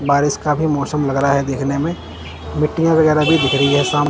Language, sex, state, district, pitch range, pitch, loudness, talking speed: Hindi, male, Punjab, Kapurthala, 135-150 Hz, 145 Hz, -16 LUFS, 235 wpm